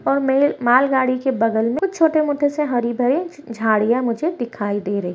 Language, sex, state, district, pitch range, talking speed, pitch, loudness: Hindi, female, Bihar, Gaya, 230-290 Hz, 185 wpm, 255 Hz, -19 LUFS